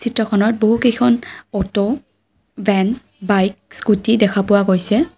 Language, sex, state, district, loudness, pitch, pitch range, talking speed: Assamese, female, Assam, Kamrup Metropolitan, -17 LUFS, 210 Hz, 200-235 Hz, 105 wpm